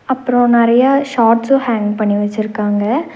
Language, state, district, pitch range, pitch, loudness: Tamil, Tamil Nadu, Nilgiris, 215-260 Hz, 235 Hz, -14 LUFS